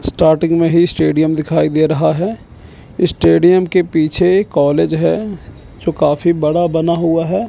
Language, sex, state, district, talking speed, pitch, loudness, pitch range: Hindi, male, Chandigarh, Chandigarh, 150 wpm, 165 Hz, -14 LUFS, 155-175 Hz